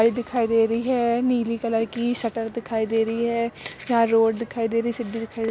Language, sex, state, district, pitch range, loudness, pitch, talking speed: Hindi, female, Uttar Pradesh, Etah, 225-235 Hz, -23 LUFS, 230 Hz, 230 wpm